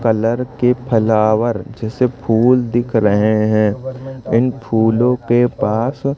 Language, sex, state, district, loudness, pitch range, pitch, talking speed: Hindi, male, Madhya Pradesh, Katni, -16 LUFS, 110-125 Hz, 115 Hz, 115 wpm